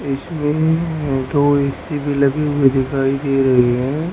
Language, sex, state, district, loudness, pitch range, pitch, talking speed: Hindi, male, Haryana, Rohtak, -17 LUFS, 135-150 Hz, 140 Hz, 160 wpm